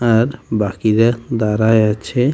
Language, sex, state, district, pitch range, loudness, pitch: Bengali, male, West Bengal, Alipurduar, 110-120 Hz, -16 LUFS, 115 Hz